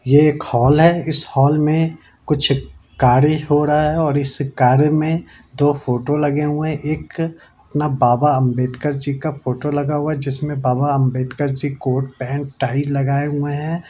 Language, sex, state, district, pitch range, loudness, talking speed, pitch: Hindi, male, Bihar, Lakhisarai, 135-150 Hz, -18 LUFS, 175 wpm, 145 Hz